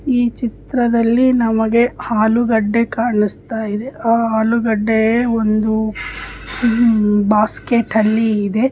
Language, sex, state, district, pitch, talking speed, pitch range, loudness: Kannada, female, Karnataka, Bijapur, 225 Hz, 80 wpm, 220-235 Hz, -16 LUFS